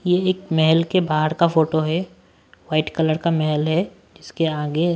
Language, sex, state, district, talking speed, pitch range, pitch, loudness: Hindi, male, Maharashtra, Washim, 180 wpm, 155-170 Hz, 160 Hz, -20 LUFS